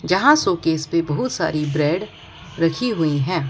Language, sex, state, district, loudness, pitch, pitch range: Hindi, female, Gujarat, Valsad, -20 LUFS, 160 Hz, 150-180 Hz